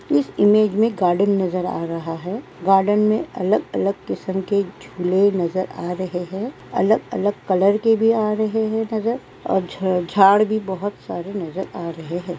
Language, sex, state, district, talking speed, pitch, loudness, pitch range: Hindi, female, Uttar Pradesh, Varanasi, 170 wpm, 195 Hz, -20 LUFS, 180-210 Hz